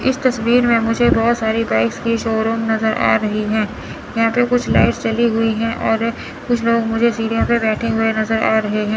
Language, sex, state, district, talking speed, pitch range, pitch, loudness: Hindi, female, Chandigarh, Chandigarh, 205 wpm, 220-235 Hz, 225 Hz, -17 LUFS